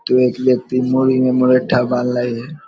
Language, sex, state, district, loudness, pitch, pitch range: Hindi, male, Bihar, Vaishali, -16 LUFS, 125 Hz, 125-130 Hz